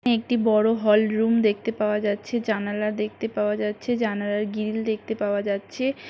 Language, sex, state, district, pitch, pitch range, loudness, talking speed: Bengali, female, West Bengal, North 24 Parganas, 215 Hz, 210-225 Hz, -24 LUFS, 155 wpm